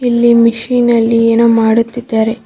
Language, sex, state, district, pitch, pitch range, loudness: Kannada, female, Karnataka, Bangalore, 230 Hz, 230-235 Hz, -11 LUFS